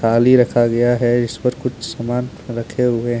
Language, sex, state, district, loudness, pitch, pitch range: Hindi, male, Jharkhand, Deoghar, -17 LUFS, 120 Hz, 115-125 Hz